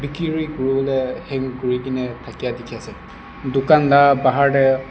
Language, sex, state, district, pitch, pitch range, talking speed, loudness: Nagamese, male, Nagaland, Dimapur, 135 Hz, 130-140 Hz, 135 wpm, -18 LUFS